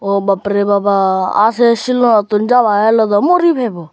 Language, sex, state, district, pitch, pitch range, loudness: Chakma, male, Tripura, Unakoti, 210 Hz, 200-240 Hz, -12 LUFS